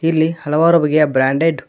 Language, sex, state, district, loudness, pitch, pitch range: Kannada, male, Karnataka, Koppal, -15 LUFS, 160 Hz, 150-165 Hz